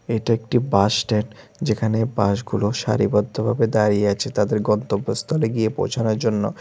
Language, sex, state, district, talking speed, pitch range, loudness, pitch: Bengali, male, Tripura, West Tripura, 125 wpm, 105-115 Hz, -21 LUFS, 110 Hz